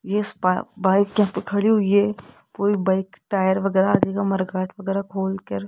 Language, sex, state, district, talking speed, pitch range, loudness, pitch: Hindi, female, Rajasthan, Jaipur, 180 wpm, 190-205 Hz, -21 LUFS, 195 Hz